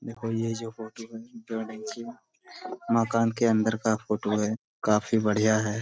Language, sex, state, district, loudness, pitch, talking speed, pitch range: Hindi, male, Uttar Pradesh, Budaun, -27 LUFS, 115 Hz, 145 wpm, 110-115 Hz